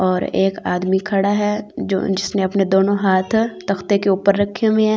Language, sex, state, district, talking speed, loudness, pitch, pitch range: Hindi, female, Delhi, New Delhi, 180 wpm, -18 LUFS, 195 Hz, 190-205 Hz